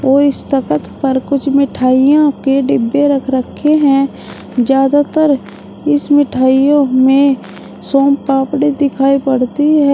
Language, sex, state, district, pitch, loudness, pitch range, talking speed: Hindi, female, Uttar Pradesh, Shamli, 275 Hz, -12 LUFS, 265-285 Hz, 110 wpm